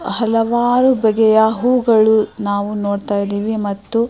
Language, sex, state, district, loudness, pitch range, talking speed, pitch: Kannada, female, Karnataka, Mysore, -15 LUFS, 205-230 Hz, 105 wpm, 220 Hz